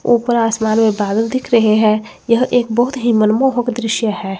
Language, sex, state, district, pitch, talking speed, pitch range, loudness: Hindi, female, Chandigarh, Chandigarh, 230 Hz, 190 wpm, 215-245 Hz, -15 LUFS